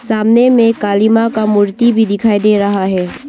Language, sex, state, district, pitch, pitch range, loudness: Hindi, female, Arunachal Pradesh, Longding, 215 Hz, 205-230 Hz, -11 LUFS